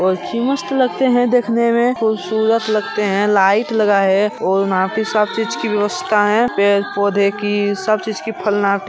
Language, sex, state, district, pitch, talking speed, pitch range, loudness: Hindi, female, Bihar, Jamui, 210 Hz, 175 wpm, 200-230 Hz, -16 LUFS